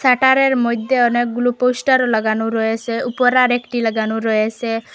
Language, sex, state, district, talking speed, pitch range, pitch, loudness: Bengali, female, Assam, Hailakandi, 135 wpm, 225-250 Hz, 240 Hz, -16 LUFS